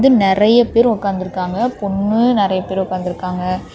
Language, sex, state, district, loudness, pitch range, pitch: Tamil, female, Tamil Nadu, Namakkal, -16 LUFS, 185-235 Hz, 195 Hz